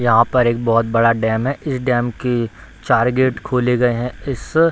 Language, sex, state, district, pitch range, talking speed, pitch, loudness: Hindi, male, Bihar, Darbhanga, 115-130 Hz, 215 wpm, 120 Hz, -17 LUFS